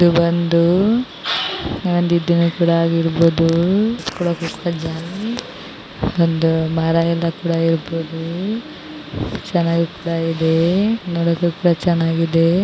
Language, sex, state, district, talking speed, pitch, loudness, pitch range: Kannada, female, Karnataka, Bijapur, 45 wpm, 170 Hz, -18 LUFS, 165-175 Hz